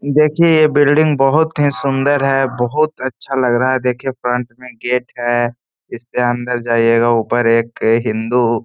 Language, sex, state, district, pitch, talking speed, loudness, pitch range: Hindi, male, Bihar, Gaya, 125 Hz, 165 wpm, -15 LUFS, 120-140 Hz